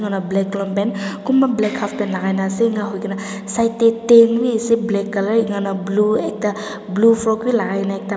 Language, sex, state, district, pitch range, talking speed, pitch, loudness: Nagamese, female, Nagaland, Dimapur, 200-230 Hz, 220 wpm, 210 Hz, -18 LUFS